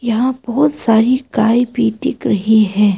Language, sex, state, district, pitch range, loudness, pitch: Hindi, female, Arunachal Pradesh, Papum Pare, 220-255 Hz, -14 LUFS, 230 Hz